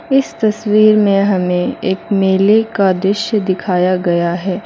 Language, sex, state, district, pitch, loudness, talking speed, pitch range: Hindi, female, Mizoram, Aizawl, 195 Hz, -14 LUFS, 140 wpm, 185-215 Hz